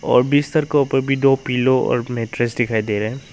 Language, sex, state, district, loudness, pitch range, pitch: Hindi, male, Arunachal Pradesh, Longding, -18 LUFS, 120-135 Hz, 130 Hz